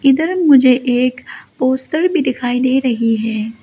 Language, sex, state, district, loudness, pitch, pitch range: Hindi, female, Arunachal Pradesh, Lower Dibang Valley, -15 LUFS, 255 Hz, 245-275 Hz